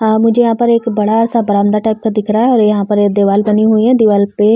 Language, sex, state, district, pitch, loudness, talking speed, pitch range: Hindi, female, Uttar Pradesh, Varanasi, 215 Hz, -12 LUFS, 290 wpm, 210-225 Hz